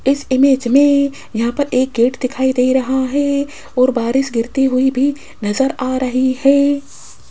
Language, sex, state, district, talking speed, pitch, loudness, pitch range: Hindi, female, Rajasthan, Jaipur, 165 wpm, 265 Hz, -16 LUFS, 255-280 Hz